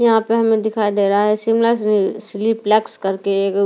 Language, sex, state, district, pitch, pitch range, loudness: Hindi, female, Delhi, New Delhi, 215 Hz, 200-225 Hz, -17 LUFS